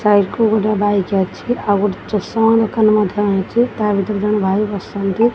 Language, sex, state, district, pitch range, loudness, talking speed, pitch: Odia, female, Odisha, Khordha, 200-220 Hz, -16 LUFS, 145 wpm, 210 Hz